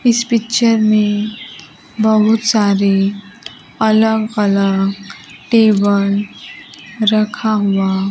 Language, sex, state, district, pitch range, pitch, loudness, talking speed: Hindi, female, Bihar, Kaimur, 200-220 Hz, 215 Hz, -14 LUFS, 75 wpm